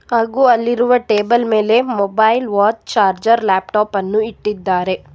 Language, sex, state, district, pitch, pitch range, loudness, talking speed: Kannada, female, Karnataka, Bangalore, 220 Hz, 200-235 Hz, -15 LUFS, 115 wpm